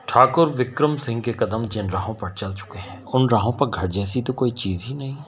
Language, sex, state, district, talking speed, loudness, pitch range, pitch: Hindi, male, Bihar, Patna, 240 wpm, -22 LUFS, 100-130 Hz, 115 Hz